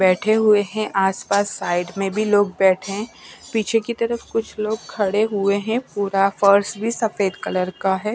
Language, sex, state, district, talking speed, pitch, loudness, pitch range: Hindi, female, Punjab, Pathankot, 185 wpm, 205 Hz, -20 LUFS, 195-220 Hz